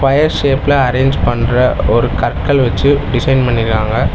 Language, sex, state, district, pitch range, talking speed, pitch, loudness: Tamil, male, Tamil Nadu, Chennai, 120-140 Hz, 130 wpm, 130 Hz, -13 LUFS